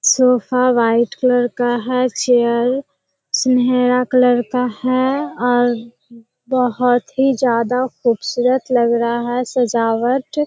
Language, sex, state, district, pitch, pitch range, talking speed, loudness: Hindi, female, Bihar, Kishanganj, 245 Hz, 235-255 Hz, 110 wpm, -16 LUFS